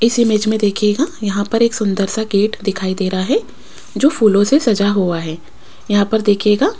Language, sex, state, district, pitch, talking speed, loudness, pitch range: Hindi, female, Rajasthan, Jaipur, 210 Hz, 210 wpm, -16 LUFS, 200-225 Hz